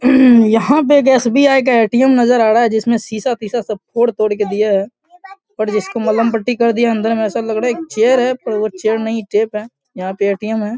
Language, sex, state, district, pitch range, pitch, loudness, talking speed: Hindi, male, Bihar, Samastipur, 215-250 Hz, 230 Hz, -14 LUFS, 250 wpm